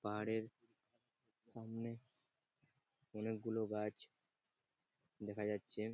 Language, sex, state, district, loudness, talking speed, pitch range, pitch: Bengali, male, West Bengal, Purulia, -45 LUFS, 70 wpm, 105-115 Hz, 110 Hz